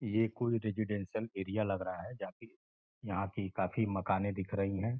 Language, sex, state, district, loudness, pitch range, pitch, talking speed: Hindi, male, Uttar Pradesh, Gorakhpur, -36 LUFS, 95-110 Hz, 100 Hz, 190 wpm